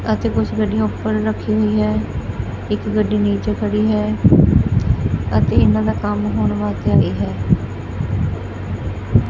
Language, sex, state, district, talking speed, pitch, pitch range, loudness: Punjabi, female, Punjab, Fazilka, 130 wpm, 105 Hz, 105-110 Hz, -18 LUFS